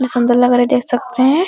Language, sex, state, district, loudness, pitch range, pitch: Hindi, female, Bihar, Araria, -13 LUFS, 245-255 Hz, 250 Hz